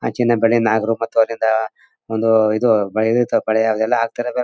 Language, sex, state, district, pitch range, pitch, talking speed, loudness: Kannada, male, Karnataka, Mysore, 110-115 Hz, 115 Hz, 190 wpm, -17 LUFS